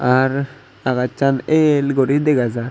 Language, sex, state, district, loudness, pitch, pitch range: Chakma, male, Tripura, Unakoti, -17 LUFS, 135 Hz, 125-140 Hz